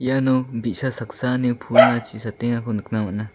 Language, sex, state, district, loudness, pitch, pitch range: Garo, male, Meghalaya, South Garo Hills, -21 LUFS, 120 Hz, 110-125 Hz